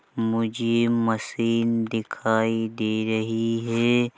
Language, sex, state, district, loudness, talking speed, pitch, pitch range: Hindi, male, Chhattisgarh, Bilaspur, -24 LUFS, 100 wpm, 115 Hz, 110-115 Hz